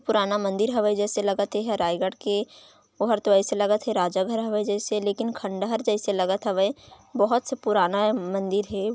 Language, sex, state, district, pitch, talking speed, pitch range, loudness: Chhattisgarhi, female, Chhattisgarh, Raigarh, 205 Hz, 180 wpm, 200-220 Hz, -25 LUFS